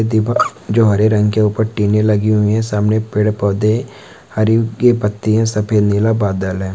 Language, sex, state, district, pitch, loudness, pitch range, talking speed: Hindi, male, Uttarakhand, Uttarkashi, 105 Hz, -15 LUFS, 105-110 Hz, 180 wpm